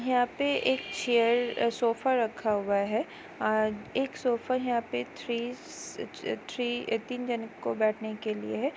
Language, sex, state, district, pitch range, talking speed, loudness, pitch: Hindi, female, Goa, North and South Goa, 215-250 Hz, 150 wpm, -30 LUFS, 235 Hz